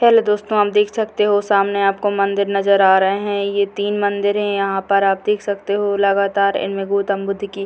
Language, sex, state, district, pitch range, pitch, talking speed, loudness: Hindi, female, Bihar, Purnia, 195-205 Hz, 200 Hz, 220 wpm, -17 LUFS